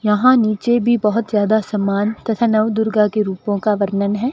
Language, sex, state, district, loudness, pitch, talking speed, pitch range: Hindi, female, Rajasthan, Bikaner, -17 LUFS, 215 Hz, 180 wpm, 205-225 Hz